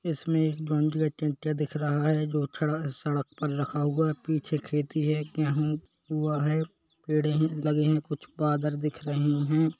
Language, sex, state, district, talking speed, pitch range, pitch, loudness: Hindi, male, Chhattisgarh, Rajnandgaon, 165 wpm, 150-155 Hz, 150 Hz, -28 LUFS